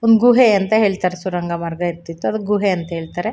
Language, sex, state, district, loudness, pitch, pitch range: Kannada, female, Karnataka, Shimoga, -17 LUFS, 185 Hz, 170-215 Hz